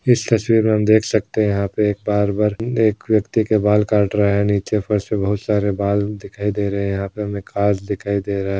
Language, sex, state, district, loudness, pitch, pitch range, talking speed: Hindi, male, Bihar, Darbhanga, -19 LUFS, 105 Hz, 100-110 Hz, 235 wpm